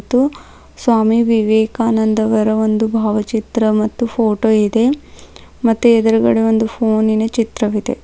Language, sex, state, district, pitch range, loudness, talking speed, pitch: Kannada, female, Karnataka, Bidar, 215-230 Hz, -15 LUFS, 95 wpm, 225 Hz